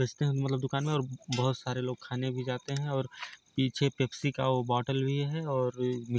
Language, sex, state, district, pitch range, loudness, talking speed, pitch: Hindi, male, Chhattisgarh, Sarguja, 125-140 Hz, -32 LUFS, 195 wpm, 130 Hz